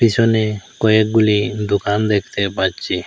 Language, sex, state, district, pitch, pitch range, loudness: Bengali, male, Assam, Hailakandi, 105 Hz, 100-110 Hz, -17 LUFS